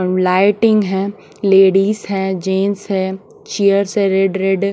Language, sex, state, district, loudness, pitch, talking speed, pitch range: Hindi, female, Odisha, Nuapada, -15 LUFS, 195 Hz, 140 wpm, 190-200 Hz